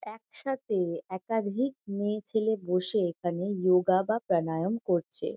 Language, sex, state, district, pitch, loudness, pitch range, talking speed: Bengali, female, West Bengal, Kolkata, 200 Hz, -29 LUFS, 180-220 Hz, 100 wpm